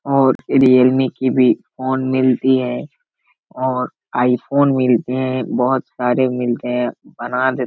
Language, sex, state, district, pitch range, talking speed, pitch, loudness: Hindi, male, Bihar, Darbhanga, 125-130 Hz, 140 wpm, 130 Hz, -17 LUFS